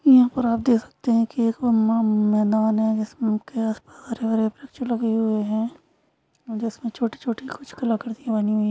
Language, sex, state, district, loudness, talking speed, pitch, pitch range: Hindi, female, Maharashtra, Nagpur, -23 LUFS, 170 wpm, 225 Hz, 220-240 Hz